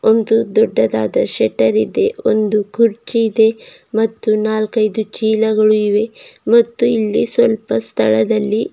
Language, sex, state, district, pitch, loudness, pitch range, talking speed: Kannada, female, Karnataka, Bidar, 220 Hz, -15 LUFS, 210-225 Hz, 105 wpm